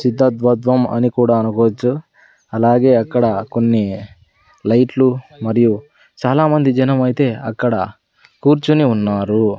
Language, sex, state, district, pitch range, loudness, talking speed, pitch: Telugu, male, Andhra Pradesh, Sri Satya Sai, 110-130 Hz, -16 LUFS, 95 wpm, 120 Hz